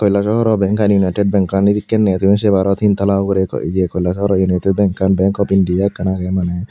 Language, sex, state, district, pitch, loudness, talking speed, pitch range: Chakma, female, Tripura, Unakoti, 95 Hz, -15 LUFS, 180 wpm, 95-100 Hz